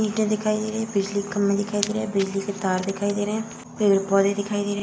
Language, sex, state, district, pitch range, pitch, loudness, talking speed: Hindi, female, Bihar, Saharsa, 200-215 Hz, 205 Hz, -24 LUFS, 300 wpm